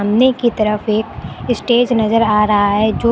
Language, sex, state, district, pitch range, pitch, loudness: Hindi, female, Uttar Pradesh, Lucknow, 210-235 Hz, 220 Hz, -15 LUFS